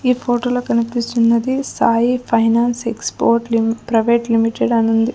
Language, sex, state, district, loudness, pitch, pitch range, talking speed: Telugu, female, Andhra Pradesh, Sri Satya Sai, -16 LUFS, 235 Hz, 230-245 Hz, 140 wpm